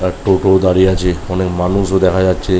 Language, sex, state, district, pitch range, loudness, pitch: Bengali, male, West Bengal, Malda, 90-95 Hz, -14 LUFS, 95 Hz